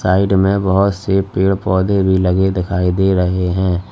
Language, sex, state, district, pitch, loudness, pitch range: Hindi, male, Uttar Pradesh, Lalitpur, 95 Hz, -15 LUFS, 90-95 Hz